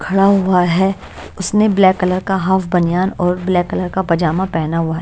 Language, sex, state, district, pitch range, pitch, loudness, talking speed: Hindi, female, Bihar, Patna, 175-190 Hz, 185 Hz, -15 LUFS, 205 wpm